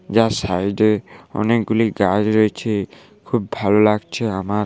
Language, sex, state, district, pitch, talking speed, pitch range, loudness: Bengali, male, West Bengal, Dakshin Dinajpur, 105 Hz, 130 wpm, 100-110 Hz, -19 LUFS